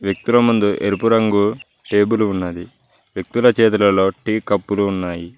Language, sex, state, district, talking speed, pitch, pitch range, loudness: Telugu, male, Telangana, Mahabubabad, 125 wpm, 105 Hz, 95-115 Hz, -17 LUFS